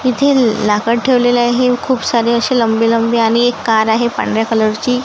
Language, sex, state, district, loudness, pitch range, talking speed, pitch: Marathi, female, Maharashtra, Gondia, -13 LUFS, 225-250 Hz, 190 wpm, 235 Hz